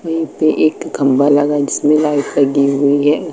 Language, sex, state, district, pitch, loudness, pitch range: Hindi, female, Uttar Pradesh, Lucknow, 145 Hz, -14 LUFS, 140-155 Hz